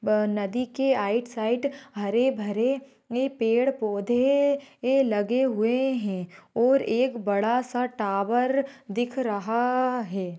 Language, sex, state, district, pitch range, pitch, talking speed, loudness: Hindi, female, Bihar, Jahanabad, 210-265 Hz, 245 Hz, 105 wpm, -25 LUFS